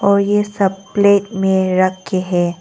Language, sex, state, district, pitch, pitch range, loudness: Hindi, female, Arunachal Pradesh, Longding, 195 Hz, 185-200 Hz, -16 LUFS